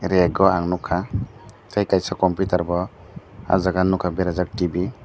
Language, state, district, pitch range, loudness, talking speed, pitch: Kokborok, Tripura, Dhalai, 90-100 Hz, -21 LUFS, 155 wpm, 95 Hz